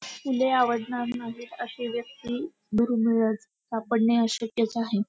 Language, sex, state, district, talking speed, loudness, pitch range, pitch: Marathi, female, Maharashtra, Pune, 105 wpm, -27 LUFS, 230-240 Hz, 235 Hz